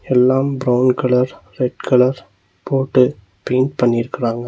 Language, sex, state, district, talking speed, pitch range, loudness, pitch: Tamil, male, Tamil Nadu, Nilgiris, 105 wpm, 120-130 Hz, -17 LUFS, 125 Hz